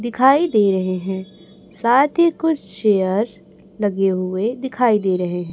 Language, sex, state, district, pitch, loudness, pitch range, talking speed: Hindi, male, Chhattisgarh, Raipur, 205 Hz, -18 LUFS, 190-250 Hz, 140 wpm